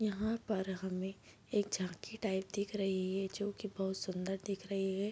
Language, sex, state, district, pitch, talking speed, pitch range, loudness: Hindi, female, Bihar, Bhagalpur, 195 Hz, 185 wpm, 190-205 Hz, -38 LUFS